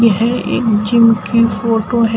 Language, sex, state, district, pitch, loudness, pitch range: Hindi, female, Uttar Pradesh, Shamli, 230 Hz, -13 LUFS, 225-230 Hz